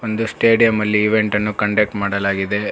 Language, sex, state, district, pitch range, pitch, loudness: Kannada, male, Karnataka, Bangalore, 105-110 Hz, 105 Hz, -17 LUFS